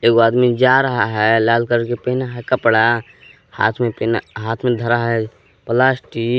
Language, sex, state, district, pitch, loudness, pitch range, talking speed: Hindi, male, Jharkhand, Palamu, 120 Hz, -17 LUFS, 115-125 Hz, 185 wpm